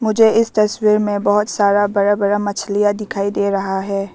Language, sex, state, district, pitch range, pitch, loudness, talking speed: Hindi, female, Arunachal Pradesh, Lower Dibang Valley, 200-210 Hz, 205 Hz, -16 LUFS, 190 wpm